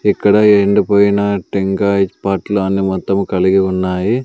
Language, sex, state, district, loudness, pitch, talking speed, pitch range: Telugu, male, Andhra Pradesh, Sri Satya Sai, -14 LUFS, 100 Hz, 115 wpm, 95-100 Hz